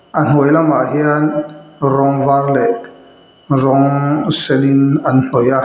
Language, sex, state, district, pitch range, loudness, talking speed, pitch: Mizo, male, Mizoram, Aizawl, 135-150 Hz, -13 LUFS, 125 wpm, 145 Hz